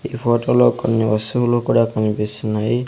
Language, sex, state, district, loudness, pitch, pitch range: Telugu, male, Andhra Pradesh, Sri Satya Sai, -18 LUFS, 115 Hz, 105-120 Hz